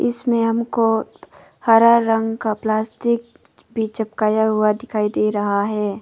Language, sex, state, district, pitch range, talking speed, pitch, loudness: Hindi, female, Arunachal Pradesh, Papum Pare, 215-230 Hz, 130 wpm, 225 Hz, -19 LUFS